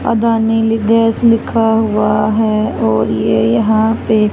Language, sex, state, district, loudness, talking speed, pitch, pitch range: Hindi, female, Haryana, Charkhi Dadri, -13 LUFS, 140 wpm, 220 Hz, 210-225 Hz